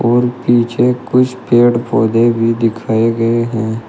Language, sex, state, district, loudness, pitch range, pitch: Hindi, male, Uttar Pradesh, Shamli, -13 LUFS, 115-120 Hz, 115 Hz